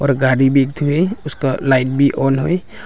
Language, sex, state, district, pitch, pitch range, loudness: Hindi, male, Arunachal Pradesh, Longding, 140 Hz, 135-145 Hz, -16 LUFS